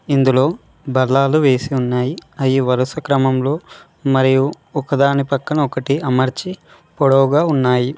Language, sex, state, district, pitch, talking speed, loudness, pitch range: Telugu, male, Telangana, Mahabubabad, 135 Hz, 105 wpm, -17 LUFS, 130-150 Hz